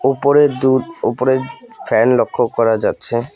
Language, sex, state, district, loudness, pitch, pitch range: Bengali, male, West Bengal, Alipurduar, -15 LUFS, 130 Hz, 120-140 Hz